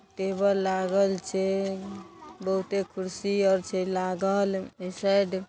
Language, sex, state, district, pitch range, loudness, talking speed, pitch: Maithili, female, Bihar, Darbhanga, 190-195 Hz, -27 LUFS, 120 wpm, 190 Hz